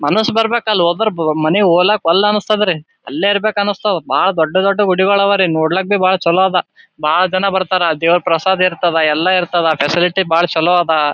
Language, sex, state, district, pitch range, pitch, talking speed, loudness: Kannada, male, Karnataka, Gulbarga, 165-200 Hz, 185 Hz, 190 wpm, -14 LUFS